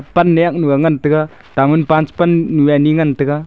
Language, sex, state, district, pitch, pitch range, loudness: Wancho, male, Arunachal Pradesh, Longding, 155 Hz, 145-160 Hz, -13 LUFS